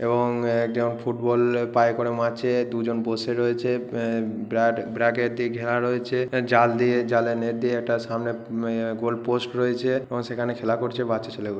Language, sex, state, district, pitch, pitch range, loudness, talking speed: Bengali, male, West Bengal, Purulia, 120 Hz, 115-120 Hz, -24 LUFS, 170 wpm